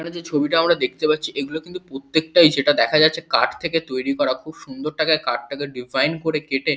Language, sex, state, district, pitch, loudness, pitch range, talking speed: Bengali, male, West Bengal, Kolkata, 155 Hz, -20 LUFS, 140-165 Hz, 205 wpm